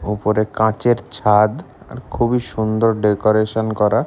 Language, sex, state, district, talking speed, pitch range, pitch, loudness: Bengali, male, West Bengal, Kolkata, 120 wpm, 105-120 Hz, 110 Hz, -17 LUFS